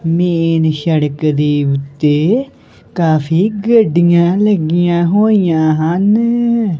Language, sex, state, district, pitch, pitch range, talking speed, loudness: Punjabi, male, Punjab, Kapurthala, 170 Hz, 155-205 Hz, 80 wpm, -13 LUFS